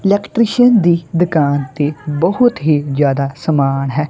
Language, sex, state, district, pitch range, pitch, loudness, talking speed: Punjabi, male, Punjab, Kapurthala, 145-190 Hz, 155 Hz, -14 LUFS, 130 wpm